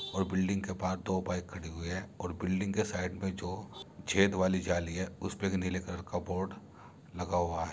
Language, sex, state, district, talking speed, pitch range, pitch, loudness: Hindi, male, Uttar Pradesh, Muzaffarnagar, 215 wpm, 90-95 Hz, 95 Hz, -34 LUFS